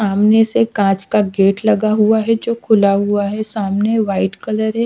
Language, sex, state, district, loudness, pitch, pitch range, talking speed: Hindi, female, Odisha, Sambalpur, -15 LUFS, 215 Hz, 200-220 Hz, 195 wpm